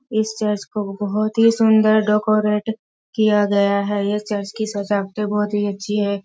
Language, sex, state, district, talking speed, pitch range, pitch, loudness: Hindi, female, Bihar, Sitamarhi, 170 wpm, 205-215 Hz, 210 Hz, -19 LUFS